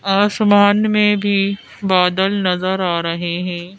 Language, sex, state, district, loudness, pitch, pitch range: Hindi, female, Madhya Pradesh, Bhopal, -16 LUFS, 195 Hz, 180-205 Hz